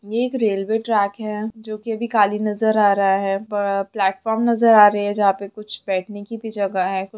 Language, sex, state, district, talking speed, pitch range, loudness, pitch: Hindi, female, Bihar, Jamui, 235 wpm, 200-220 Hz, -19 LUFS, 210 Hz